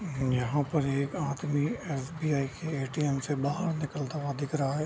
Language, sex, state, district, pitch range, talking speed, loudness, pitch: Hindi, male, Bihar, Bhagalpur, 140-150 Hz, 175 wpm, -31 LUFS, 145 Hz